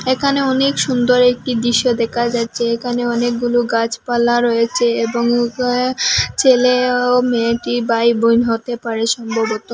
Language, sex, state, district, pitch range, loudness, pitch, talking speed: Bengali, female, Assam, Hailakandi, 235-250 Hz, -16 LUFS, 240 Hz, 135 wpm